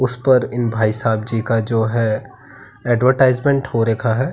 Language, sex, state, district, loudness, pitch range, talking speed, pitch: Hindi, male, Uttarakhand, Tehri Garhwal, -17 LUFS, 115-130 Hz, 150 wpm, 120 Hz